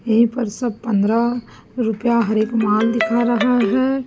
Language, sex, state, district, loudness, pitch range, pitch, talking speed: Hindi, female, Chhattisgarh, Raipur, -18 LUFS, 220-240 Hz, 230 Hz, 160 wpm